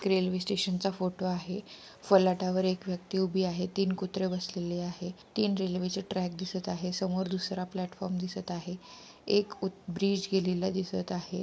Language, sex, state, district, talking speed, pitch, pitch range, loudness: Marathi, female, Maharashtra, Pune, 165 wpm, 185 Hz, 180-195 Hz, -32 LUFS